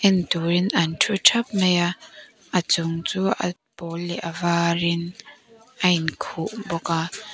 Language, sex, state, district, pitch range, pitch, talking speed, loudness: Mizo, female, Mizoram, Aizawl, 170-195 Hz, 175 Hz, 140 wpm, -22 LUFS